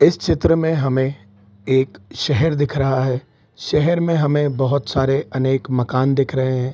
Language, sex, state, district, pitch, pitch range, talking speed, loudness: Hindi, male, Bihar, Saran, 135 Hz, 130-145 Hz, 170 wpm, -19 LUFS